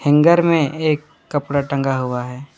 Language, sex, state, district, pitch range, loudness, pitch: Hindi, male, West Bengal, Alipurduar, 135-155 Hz, -18 LUFS, 145 Hz